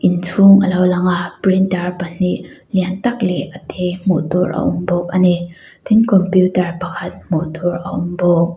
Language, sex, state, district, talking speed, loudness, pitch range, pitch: Mizo, female, Mizoram, Aizawl, 190 wpm, -16 LUFS, 175-185 Hz, 180 Hz